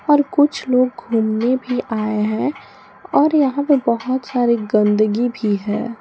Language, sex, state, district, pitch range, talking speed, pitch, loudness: Hindi, female, Jharkhand, Palamu, 215-265 Hz, 150 wpm, 240 Hz, -18 LUFS